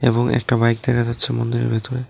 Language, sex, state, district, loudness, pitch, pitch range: Bengali, male, Tripura, West Tripura, -19 LUFS, 120 Hz, 115-125 Hz